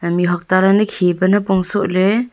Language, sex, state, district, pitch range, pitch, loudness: Wancho, female, Arunachal Pradesh, Longding, 180-205 Hz, 190 Hz, -15 LUFS